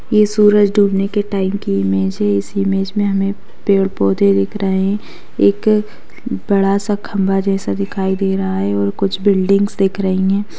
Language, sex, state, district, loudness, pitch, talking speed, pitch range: Hindi, female, Bihar, Saharsa, -16 LUFS, 195 Hz, 175 wpm, 190-200 Hz